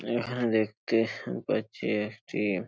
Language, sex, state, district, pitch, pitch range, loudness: Bengali, male, West Bengal, Paschim Medinipur, 110 Hz, 105-115 Hz, -30 LUFS